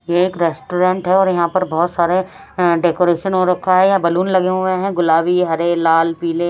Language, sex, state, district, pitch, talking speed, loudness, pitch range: Hindi, female, Haryana, Rohtak, 180 Hz, 205 wpm, -16 LUFS, 170-185 Hz